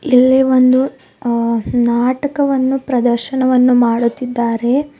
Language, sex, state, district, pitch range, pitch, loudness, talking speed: Kannada, female, Karnataka, Bidar, 235-265 Hz, 250 Hz, -14 LUFS, 85 wpm